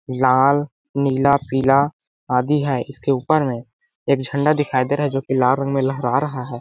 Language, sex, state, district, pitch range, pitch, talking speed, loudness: Hindi, male, Chhattisgarh, Balrampur, 130-145 Hz, 135 Hz, 200 wpm, -19 LUFS